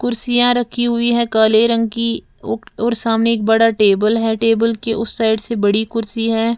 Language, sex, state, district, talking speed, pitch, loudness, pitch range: Hindi, female, Uttar Pradesh, Lalitpur, 200 wpm, 225 Hz, -16 LUFS, 225-235 Hz